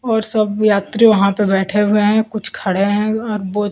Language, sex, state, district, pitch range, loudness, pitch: Hindi, female, Bihar, Kaimur, 200-215 Hz, -15 LUFS, 210 Hz